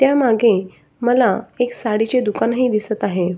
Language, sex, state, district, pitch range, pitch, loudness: Marathi, female, Maharashtra, Sindhudurg, 200-245 Hz, 225 Hz, -18 LUFS